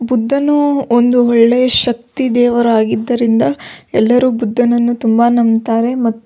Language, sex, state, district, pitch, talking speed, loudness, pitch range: Kannada, female, Karnataka, Belgaum, 240 Hz, 105 wpm, -12 LUFS, 230-250 Hz